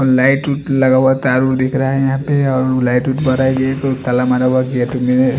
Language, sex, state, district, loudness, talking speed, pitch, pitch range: Hindi, male, Chandigarh, Chandigarh, -15 LUFS, 145 wpm, 130 Hz, 130-135 Hz